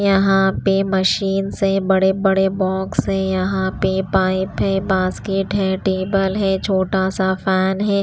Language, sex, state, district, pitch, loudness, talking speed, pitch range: Hindi, female, Punjab, Pathankot, 190 Hz, -18 LUFS, 140 wpm, 190-195 Hz